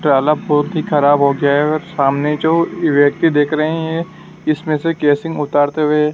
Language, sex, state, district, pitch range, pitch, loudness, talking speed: Hindi, male, Madhya Pradesh, Dhar, 145-160 Hz, 150 Hz, -15 LUFS, 135 wpm